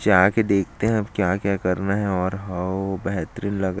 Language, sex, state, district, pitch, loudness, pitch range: Hindi, male, Chhattisgarh, Jashpur, 100 Hz, -23 LUFS, 95-100 Hz